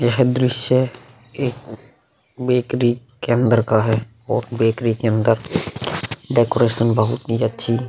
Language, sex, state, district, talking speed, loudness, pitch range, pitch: Hindi, male, Bihar, Vaishali, 130 wpm, -19 LUFS, 115-125 Hz, 120 Hz